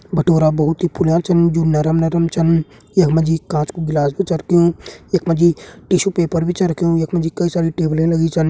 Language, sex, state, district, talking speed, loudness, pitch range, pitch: Hindi, male, Uttarakhand, Tehri Garhwal, 220 wpm, -16 LUFS, 160-175 Hz, 165 Hz